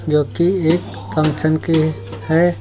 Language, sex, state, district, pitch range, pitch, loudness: Hindi, male, Uttar Pradesh, Lucknow, 150-165 Hz, 155 Hz, -17 LUFS